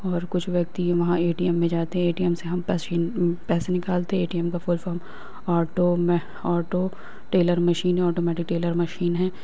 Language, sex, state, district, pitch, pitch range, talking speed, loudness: Hindi, female, Uttar Pradesh, Budaun, 175 Hz, 170-180 Hz, 165 wpm, -24 LUFS